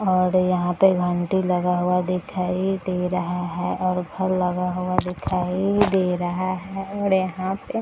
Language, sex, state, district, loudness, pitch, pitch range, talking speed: Hindi, female, Bihar, Gaya, -23 LUFS, 185 Hz, 180-190 Hz, 170 wpm